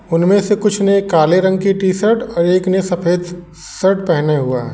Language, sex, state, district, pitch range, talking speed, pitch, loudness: Hindi, male, Uttar Pradesh, Lalitpur, 170-195 Hz, 200 wpm, 185 Hz, -14 LUFS